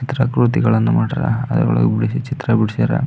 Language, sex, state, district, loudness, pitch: Kannada, male, Karnataka, Belgaum, -17 LUFS, 120 Hz